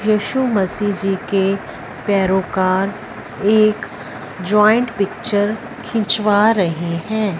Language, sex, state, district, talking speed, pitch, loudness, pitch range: Hindi, female, Punjab, Fazilka, 95 wpm, 205 Hz, -17 LUFS, 190-215 Hz